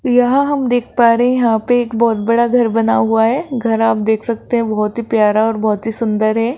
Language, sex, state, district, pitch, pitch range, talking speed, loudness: Hindi, female, Rajasthan, Jaipur, 230 Hz, 220-245 Hz, 255 wpm, -15 LUFS